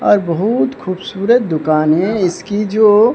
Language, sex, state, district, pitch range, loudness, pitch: Hindi, male, Odisha, Sambalpur, 165-215 Hz, -14 LUFS, 190 Hz